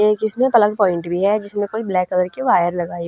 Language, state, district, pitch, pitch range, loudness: Haryanvi, Haryana, Rohtak, 205 Hz, 180-215 Hz, -18 LUFS